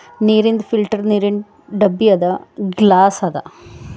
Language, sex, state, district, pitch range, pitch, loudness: Kannada, female, Karnataka, Bidar, 185-215 Hz, 205 Hz, -15 LUFS